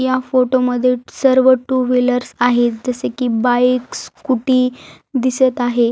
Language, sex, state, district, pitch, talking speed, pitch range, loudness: Marathi, female, Maharashtra, Aurangabad, 250 Hz, 130 wpm, 245-255 Hz, -16 LUFS